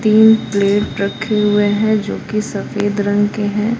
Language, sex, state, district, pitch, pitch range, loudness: Hindi, female, Jharkhand, Palamu, 210 Hz, 205-215 Hz, -16 LUFS